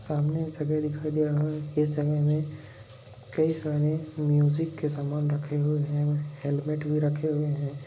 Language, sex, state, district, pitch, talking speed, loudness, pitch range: Hindi, male, Bihar, Lakhisarai, 150 Hz, 150 wpm, -28 LUFS, 145-150 Hz